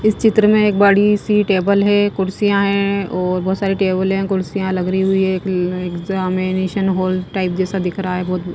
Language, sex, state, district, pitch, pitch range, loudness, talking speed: Hindi, female, Himachal Pradesh, Shimla, 190 Hz, 185-200 Hz, -17 LUFS, 195 wpm